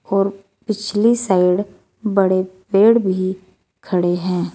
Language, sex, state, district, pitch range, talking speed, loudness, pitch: Hindi, female, Uttar Pradesh, Saharanpur, 185-210 Hz, 105 wpm, -18 LUFS, 195 Hz